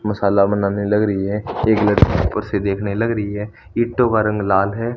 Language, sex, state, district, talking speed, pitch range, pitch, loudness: Hindi, male, Haryana, Rohtak, 205 wpm, 100-110 Hz, 105 Hz, -18 LUFS